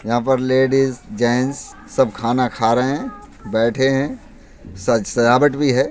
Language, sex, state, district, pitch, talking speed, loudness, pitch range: Hindi, male, Uttar Pradesh, Budaun, 125 Hz, 150 wpm, -18 LUFS, 115-135 Hz